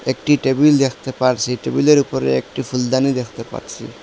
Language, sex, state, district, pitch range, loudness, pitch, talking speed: Bengali, male, Assam, Hailakandi, 125-140 Hz, -17 LUFS, 130 Hz, 165 wpm